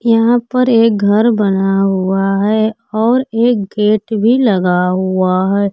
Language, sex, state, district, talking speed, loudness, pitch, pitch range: Hindi, female, Bihar, Kaimur, 145 wpm, -13 LUFS, 210 Hz, 195-230 Hz